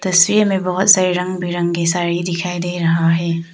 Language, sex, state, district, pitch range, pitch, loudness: Hindi, female, Arunachal Pradesh, Papum Pare, 170-185 Hz, 175 Hz, -16 LUFS